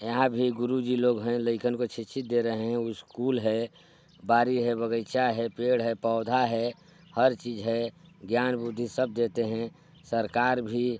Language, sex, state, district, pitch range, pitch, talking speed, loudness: Hindi, male, Chhattisgarh, Sarguja, 115-125 Hz, 120 Hz, 175 wpm, -28 LUFS